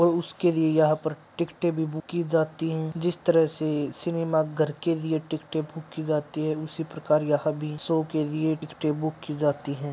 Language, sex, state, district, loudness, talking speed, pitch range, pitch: Hindi, male, Uttar Pradesh, Etah, -27 LUFS, 210 wpm, 150-165 Hz, 155 Hz